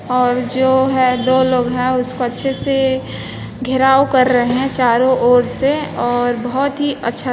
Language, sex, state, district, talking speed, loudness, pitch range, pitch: Hindi, female, Chhattisgarh, Bilaspur, 165 wpm, -15 LUFS, 245-265 Hz, 255 Hz